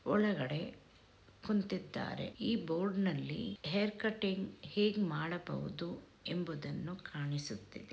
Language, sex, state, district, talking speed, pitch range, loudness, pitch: Kannada, female, Karnataka, Dakshina Kannada, 75 wpm, 165-210 Hz, -38 LUFS, 190 Hz